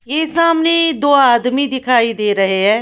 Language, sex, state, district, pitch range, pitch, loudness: Hindi, female, Maharashtra, Washim, 230-315 Hz, 260 Hz, -13 LUFS